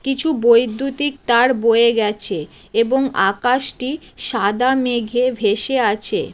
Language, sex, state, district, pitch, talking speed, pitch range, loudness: Bengali, female, West Bengal, Jalpaiguri, 245 Hz, 105 wpm, 230-265 Hz, -16 LUFS